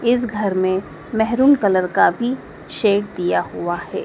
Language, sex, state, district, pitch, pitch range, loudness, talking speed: Hindi, female, Madhya Pradesh, Dhar, 205 Hz, 185-240 Hz, -19 LUFS, 165 wpm